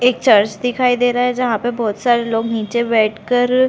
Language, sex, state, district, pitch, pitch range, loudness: Hindi, female, Chhattisgarh, Bilaspur, 240 Hz, 225-245 Hz, -16 LUFS